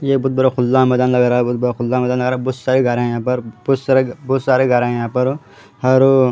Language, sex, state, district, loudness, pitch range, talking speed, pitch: Hindi, male, Haryana, Charkhi Dadri, -16 LUFS, 125-130 Hz, 245 wpm, 125 Hz